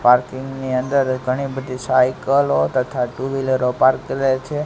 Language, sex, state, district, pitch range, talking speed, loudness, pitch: Gujarati, male, Gujarat, Gandhinagar, 125-135 Hz, 155 wpm, -19 LUFS, 130 Hz